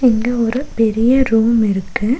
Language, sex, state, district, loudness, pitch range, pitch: Tamil, female, Tamil Nadu, Nilgiris, -15 LUFS, 220-245 Hz, 230 Hz